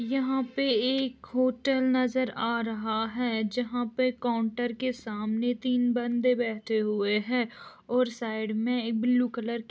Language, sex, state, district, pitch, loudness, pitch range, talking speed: Hindi, female, Chhattisgarh, Bilaspur, 245 Hz, -28 LUFS, 225-250 Hz, 160 wpm